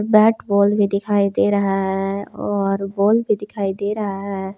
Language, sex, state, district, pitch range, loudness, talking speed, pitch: Hindi, female, Jharkhand, Palamu, 195-205 Hz, -19 LUFS, 185 wpm, 200 Hz